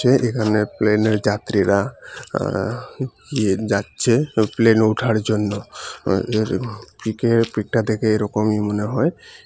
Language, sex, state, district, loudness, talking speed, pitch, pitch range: Bengali, male, Tripura, Unakoti, -20 LUFS, 115 wpm, 110 Hz, 105-115 Hz